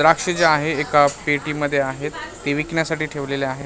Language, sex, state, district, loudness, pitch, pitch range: Marathi, male, Maharashtra, Mumbai Suburban, -20 LUFS, 150 Hz, 140-160 Hz